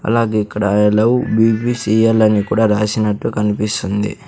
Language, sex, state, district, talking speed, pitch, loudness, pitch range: Telugu, male, Andhra Pradesh, Sri Satya Sai, 125 wpm, 105 Hz, -15 LUFS, 105-115 Hz